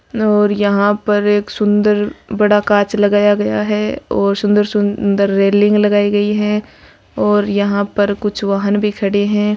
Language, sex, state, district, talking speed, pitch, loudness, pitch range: Marwari, female, Rajasthan, Churu, 150 wpm, 205 Hz, -14 LUFS, 200-210 Hz